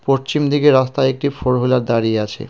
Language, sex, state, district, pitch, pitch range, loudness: Bengali, male, West Bengal, Cooch Behar, 130 Hz, 125-140 Hz, -16 LUFS